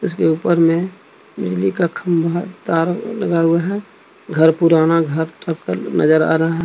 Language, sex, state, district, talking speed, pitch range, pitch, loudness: Hindi, male, Jharkhand, Deoghar, 155 wpm, 160-175 Hz, 165 Hz, -17 LUFS